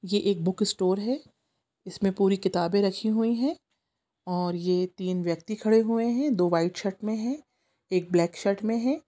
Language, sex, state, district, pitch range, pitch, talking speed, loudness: Hindi, female, Chhattisgarh, Sukma, 180-225 Hz, 200 Hz, 185 wpm, -27 LUFS